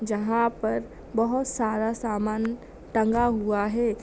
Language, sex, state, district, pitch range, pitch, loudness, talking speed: Hindi, female, Bihar, Saran, 215-235 Hz, 225 Hz, -26 LUFS, 120 wpm